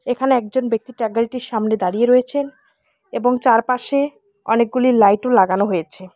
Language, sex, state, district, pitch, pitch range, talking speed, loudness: Bengali, female, West Bengal, Alipurduar, 245 Hz, 220-255 Hz, 125 wpm, -18 LUFS